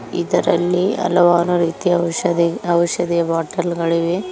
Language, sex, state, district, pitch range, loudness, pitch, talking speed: Kannada, female, Karnataka, Koppal, 170-175 Hz, -17 LUFS, 175 Hz, 95 wpm